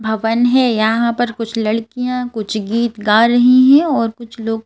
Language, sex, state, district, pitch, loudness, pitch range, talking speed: Hindi, female, Madhya Pradesh, Bhopal, 230 Hz, -15 LUFS, 220-245 Hz, 195 wpm